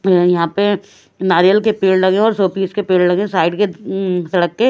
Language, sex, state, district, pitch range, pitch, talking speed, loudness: Hindi, female, Chhattisgarh, Raipur, 180-200 Hz, 190 Hz, 215 wpm, -15 LUFS